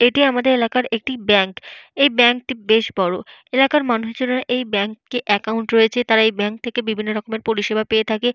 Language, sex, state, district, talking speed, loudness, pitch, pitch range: Bengali, female, Jharkhand, Jamtara, 185 wpm, -18 LUFS, 230 Hz, 215-250 Hz